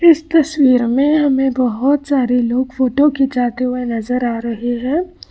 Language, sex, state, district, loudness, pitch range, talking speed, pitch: Hindi, female, Karnataka, Bangalore, -16 LUFS, 245-285 Hz, 160 wpm, 260 Hz